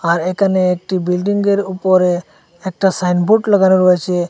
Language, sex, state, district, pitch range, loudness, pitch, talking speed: Bengali, male, Assam, Hailakandi, 180-195 Hz, -15 LUFS, 185 Hz, 125 wpm